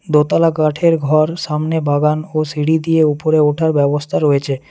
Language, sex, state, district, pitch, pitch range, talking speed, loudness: Bengali, male, West Bengal, Alipurduar, 155 Hz, 150-160 Hz, 155 wpm, -15 LUFS